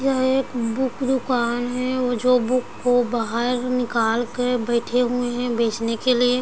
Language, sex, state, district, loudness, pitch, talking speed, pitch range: Hindi, female, Chhattisgarh, Bilaspur, -22 LUFS, 245 Hz, 170 wpm, 235-250 Hz